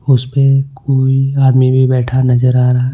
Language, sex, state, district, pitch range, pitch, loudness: Hindi, male, Punjab, Pathankot, 125-135 Hz, 130 Hz, -12 LUFS